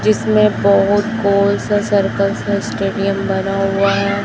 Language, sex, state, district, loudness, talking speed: Hindi, male, Chhattisgarh, Raipur, -15 LUFS, 140 wpm